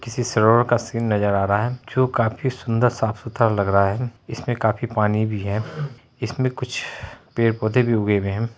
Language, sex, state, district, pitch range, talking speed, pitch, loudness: Hindi, male, Bihar, Araria, 110-125 Hz, 205 wpm, 115 Hz, -21 LUFS